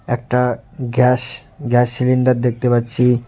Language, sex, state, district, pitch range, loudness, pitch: Bengali, male, West Bengal, Cooch Behar, 120-125 Hz, -16 LUFS, 125 Hz